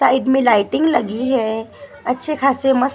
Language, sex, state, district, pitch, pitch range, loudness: Hindi, female, Maharashtra, Gondia, 260 Hz, 235-275 Hz, -17 LUFS